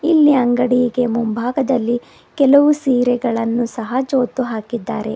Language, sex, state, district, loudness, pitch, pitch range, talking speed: Kannada, female, Karnataka, Bidar, -17 LUFS, 245 Hz, 235-265 Hz, 95 wpm